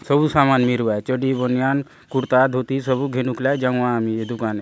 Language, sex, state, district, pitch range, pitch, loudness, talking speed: Halbi, male, Chhattisgarh, Bastar, 125-135 Hz, 130 Hz, -20 LUFS, 210 wpm